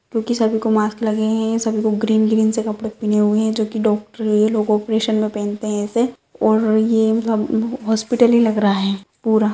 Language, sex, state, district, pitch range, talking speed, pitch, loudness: Hindi, female, Rajasthan, Nagaur, 215-225 Hz, 190 wpm, 220 Hz, -18 LUFS